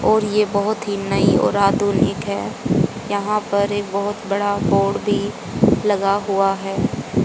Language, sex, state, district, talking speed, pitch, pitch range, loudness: Hindi, female, Haryana, Charkhi Dadri, 150 wpm, 200 Hz, 200-205 Hz, -19 LUFS